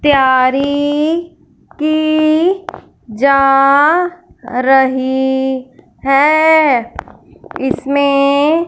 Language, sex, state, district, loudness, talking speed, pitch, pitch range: Hindi, female, Punjab, Fazilka, -12 LUFS, 40 wpm, 280 Hz, 265-310 Hz